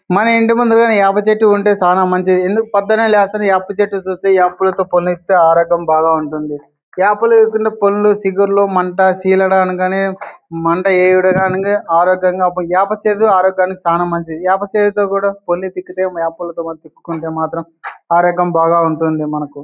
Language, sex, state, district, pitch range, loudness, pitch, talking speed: Telugu, male, Andhra Pradesh, Anantapur, 170-200 Hz, -13 LUFS, 185 Hz, 125 wpm